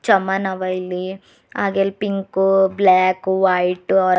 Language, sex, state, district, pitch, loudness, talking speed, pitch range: Kannada, female, Karnataka, Bidar, 190 Hz, -18 LUFS, 115 wpm, 185-195 Hz